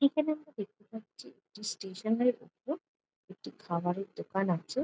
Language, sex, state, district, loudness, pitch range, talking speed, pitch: Bengali, female, West Bengal, Jalpaiguri, -34 LUFS, 195-280 Hz, 150 wpm, 215 Hz